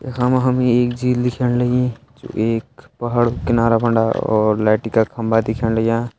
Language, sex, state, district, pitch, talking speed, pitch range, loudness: Hindi, male, Uttarakhand, Uttarkashi, 120 Hz, 195 wpm, 115-125 Hz, -18 LUFS